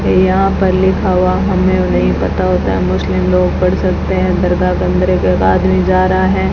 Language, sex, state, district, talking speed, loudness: Hindi, female, Rajasthan, Bikaner, 200 wpm, -13 LUFS